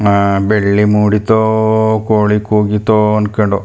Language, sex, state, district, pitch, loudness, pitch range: Kannada, male, Karnataka, Chamarajanagar, 105 Hz, -12 LUFS, 105-110 Hz